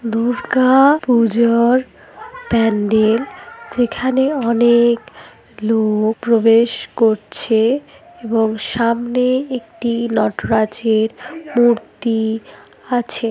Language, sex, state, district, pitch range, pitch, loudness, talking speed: Bengali, female, West Bengal, Malda, 225-250 Hz, 235 Hz, -16 LUFS, 65 wpm